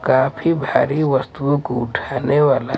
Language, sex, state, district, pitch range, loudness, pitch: Hindi, male, Maharashtra, Mumbai Suburban, 130-145 Hz, -18 LUFS, 140 Hz